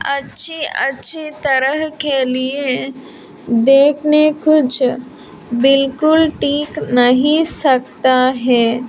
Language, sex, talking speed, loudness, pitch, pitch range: Hindi, female, 80 wpm, -15 LUFS, 275 Hz, 255-305 Hz